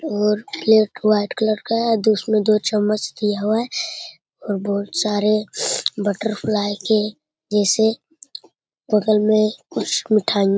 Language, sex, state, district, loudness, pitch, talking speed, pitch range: Hindi, male, Bihar, Lakhisarai, -19 LUFS, 215 Hz, 130 wpm, 210-225 Hz